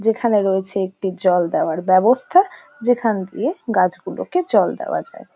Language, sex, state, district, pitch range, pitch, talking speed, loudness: Bengali, female, West Bengal, North 24 Parganas, 190-245 Hz, 210 Hz, 135 wpm, -19 LUFS